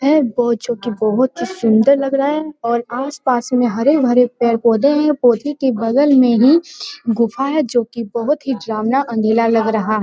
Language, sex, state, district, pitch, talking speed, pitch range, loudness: Hindi, female, Bihar, Jamui, 245 Hz, 185 wpm, 230-280 Hz, -16 LUFS